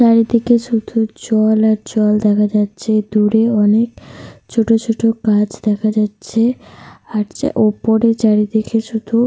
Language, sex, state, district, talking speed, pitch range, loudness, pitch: Bengali, female, Jharkhand, Sahebganj, 130 wpm, 210-225 Hz, -15 LUFS, 220 Hz